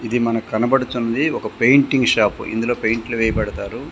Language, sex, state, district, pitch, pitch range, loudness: Telugu, male, Telangana, Komaram Bheem, 115 Hz, 110-120 Hz, -18 LUFS